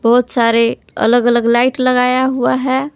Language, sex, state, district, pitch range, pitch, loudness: Hindi, female, Jharkhand, Palamu, 235-255 Hz, 245 Hz, -13 LUFS